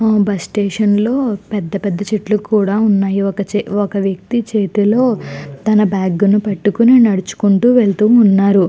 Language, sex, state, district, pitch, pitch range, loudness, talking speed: Telugu, female, Andhra Pradesh, Chittoor, 205 Hz, 195-215 Hz, -14 LUFS, 115 wpm